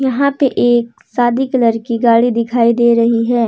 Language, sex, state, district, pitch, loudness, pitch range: Hindi, female, Jharkhand, Deoghar, 240 Hz, -13 LUFS, 230-250 Hz